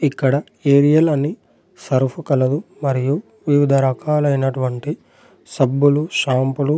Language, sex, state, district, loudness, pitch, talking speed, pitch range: Telugu, male, Telangana, Adilabad, -18 LUFS, 140 Hz, 90 wpm, 135-150 Hz